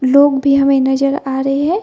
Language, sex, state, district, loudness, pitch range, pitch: Hindi, female, Bihar, Gaya, -13 LUFS, 270-280 Hz, 275 Hz